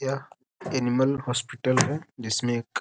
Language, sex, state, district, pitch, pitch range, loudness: Hindi, male, Bihar, Gopalganj, 130 Hz, 120-135 Hz, -26 LUFS